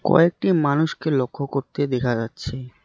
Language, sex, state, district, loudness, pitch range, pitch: Bengali, male, West Bengal, Alipurduar, -22 LUFS, 125-160 Hz, 140 Hz